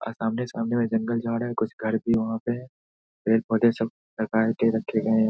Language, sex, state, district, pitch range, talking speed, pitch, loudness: Hindi, male, Bihar, Saharsa, 110-115 Hz, 205 wpm, 115 Hz, -25 LUFS